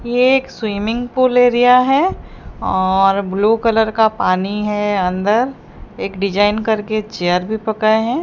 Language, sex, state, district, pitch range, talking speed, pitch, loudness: Hindi, female, Odisha, Sambalpur, 200-240 Hz, 140 wpm, 220 Hz, -16 LUFS